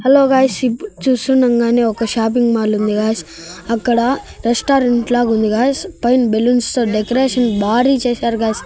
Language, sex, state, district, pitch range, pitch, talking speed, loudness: Telugu, male, Andhra Pradesh, Annamaya, 225-255 Hz, 240 Hz, 150 wpm, -15 LUFS